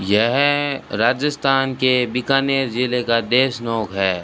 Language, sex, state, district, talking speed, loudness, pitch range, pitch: Hindi, male, Rajasthan, Bikaner, 115 wpm, -18 LUFS, 115-135 Hz, 125 Hz